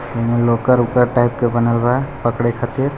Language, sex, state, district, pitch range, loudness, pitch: Hindi, male, Bihar, Gopalganj, 120-125 Hz, -17 LUFS, 120 Hz